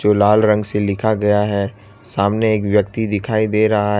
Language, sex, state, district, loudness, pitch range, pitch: Hindi, male, Gujarat, Valsad, -17 LUFS, 105-110 Hz, 105 Hz